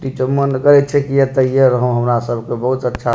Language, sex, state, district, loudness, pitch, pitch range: Maithili, male, Bihar, Supaul, -15 LUFS, 130 Hz, 120-135 Hz